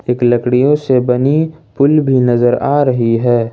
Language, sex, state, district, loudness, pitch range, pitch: Hindi, male, Jharkhand, Ranchi, -13 LUFS, 120-140 Hz, 125 Hz